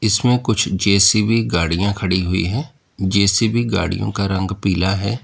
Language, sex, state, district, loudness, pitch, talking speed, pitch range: Hindi, male, Uttar Pradesh, Lalitpur, -17 LUFS, 100 Hz, 150 wpm, 95-110 Hz